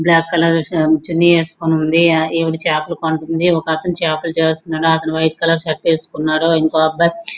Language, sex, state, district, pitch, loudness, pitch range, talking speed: Telugu, male, Andhra Pradesh, Srikakulam, 165 Hz, -15 LUFS, 160-165 Hz, 165 wpm